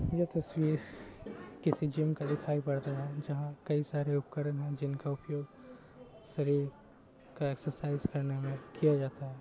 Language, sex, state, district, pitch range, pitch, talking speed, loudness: Hindi, male, Bihar, Samastipur, 140-150 Hz, 145 Hz, 145 wpm, -35 LUFS